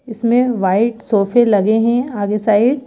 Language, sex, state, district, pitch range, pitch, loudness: Hindi, female, Madhya Pradesh, Bhopal, 210-240 Hz, 225 Hz, -15 LUFS